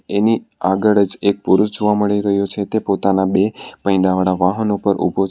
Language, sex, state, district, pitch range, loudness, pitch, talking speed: Gujarati, male, Gujarat, Valsad, 95-105 Hz, -17 LUFS, 100 Hz, 190 wpm